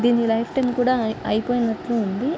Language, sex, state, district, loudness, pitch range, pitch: Telugu, female, Andhra Pradesh, Krishna, -22 LUFS, 225-245 Hz, 235 Hz